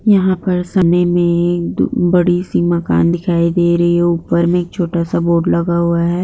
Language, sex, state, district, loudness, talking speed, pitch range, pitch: Hindi, female, Maharashtra, Chandrapur, -14 LUFS, 185 wpm, 170-175 Hz, 175 Hz